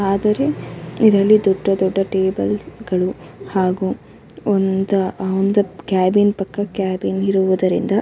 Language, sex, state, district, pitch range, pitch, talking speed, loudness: Kannada, female, Karnataka, Dharwad, 190-205 Hz, 195 Hz, 95 wpm, -18 LUFS